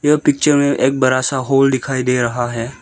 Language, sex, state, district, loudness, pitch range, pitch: Hindi, male, Arunachal Pradesh, Lower Dibang Valley, -15 LUFS, 125-140 Hz, 130 Hz